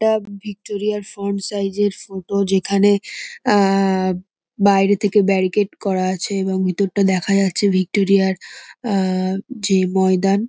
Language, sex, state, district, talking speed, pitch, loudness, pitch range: Bengali, female, West Bengal, North 24 Parganas, 130 wpm, 195 Hz, -18 LUFS, 190-205 Hz